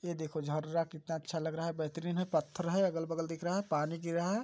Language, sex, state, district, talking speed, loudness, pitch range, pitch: Hindi, male, Chhattisgarh, Balrampur, 285 wpm, -36 LUFS, 160-175 Hz, 165 Hz